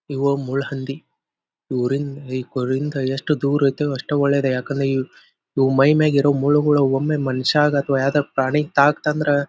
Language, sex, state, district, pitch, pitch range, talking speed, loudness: Kannada, male, Karnataka, Dharwad, 140 Hz, 135-145 Hz, 140 wpm, -20 LUFS